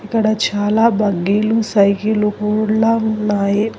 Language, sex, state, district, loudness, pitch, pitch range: Telugu, female, Telangana, Hyderabad, -16 LUFS, 210 Hz, 205-220 Hz